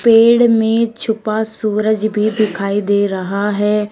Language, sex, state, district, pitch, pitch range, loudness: Hindi, female, Uttar Pradesh, Shamli, 215 Hz, 205-225 Hz, -15 LUFS